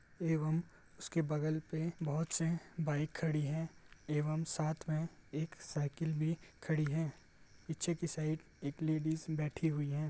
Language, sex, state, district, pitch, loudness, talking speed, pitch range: Hindi, male, Uttar Pradesh, Varanasi, 160 Hz, -38 LUFS, 150 wpm, 150-165 Hz